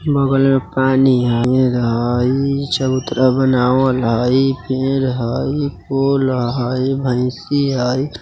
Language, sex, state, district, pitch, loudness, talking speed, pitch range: Bajjika, male, Bihar, Vaishali, 130 Hz, -16 LUFS, 100 wpm, 125-135 Hz